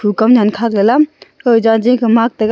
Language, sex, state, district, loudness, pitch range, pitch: Wancho, female, Arunachal Pradesh, Longding, -12 LUFS, 220-245 Hz, 230 Hz